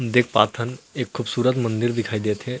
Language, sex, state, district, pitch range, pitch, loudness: Chhattisgarhi, male, Chhattisgarh, Rajnandgaon, 110-125 Hz, 120 Hz, -23 LUFS